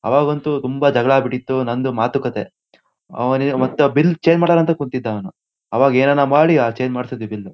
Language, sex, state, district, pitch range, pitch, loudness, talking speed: Kannada, male, Karnataka, Shimoga, 125-145 Hz, 130 Hz, -17 LUFS, 175 wpm